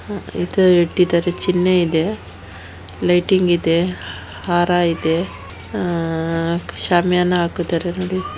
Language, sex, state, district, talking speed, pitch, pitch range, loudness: Kannada, female, Karnataka, Shimoga, 85 wpm, 170 Hz, 160-180 Hz, -18 LUFS